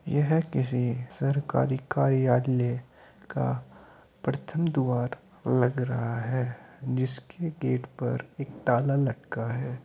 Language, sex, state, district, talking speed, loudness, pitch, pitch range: Hindi, male, Uttar Pradesh, Hamirpur, 105 wpm, -28 LUFS, 130 Hz, 125-140 Hz